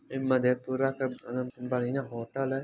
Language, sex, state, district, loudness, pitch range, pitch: Maithili, male, Bihar, Madhepura, -31 LUFS, 125-135 Hz, 130 Hz